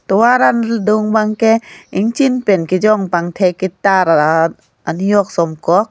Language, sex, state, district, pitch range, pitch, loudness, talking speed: Karbi, female, Assam, Karbi Anglong, 180-220 Hz, 200 Hz, -14 LUFS, 110 wpm